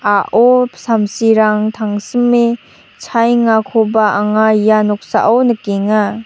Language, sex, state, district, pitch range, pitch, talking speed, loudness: Garo, female, Meghalaya, North Garo Hills, 210-235 Hz, 220 Hz, 75 wpm, -13 LUFS